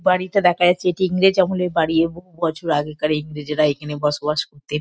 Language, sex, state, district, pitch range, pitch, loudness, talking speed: Bengali, female, West Bengal, Kolkata, 150-180 Hz, 165 Hz, -20 LUFS, 185 wpm